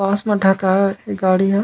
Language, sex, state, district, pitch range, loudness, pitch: Chhattisgarhi, male, Chhattisgarh, Raigarh, 190-200 Hz, -17 LUFS, 195 Hz